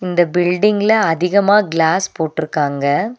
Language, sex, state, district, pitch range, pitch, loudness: Tamil, female, Tamil Nadu, Nilgiris, 160-200 Hz, 175 Hz, -15 LUFS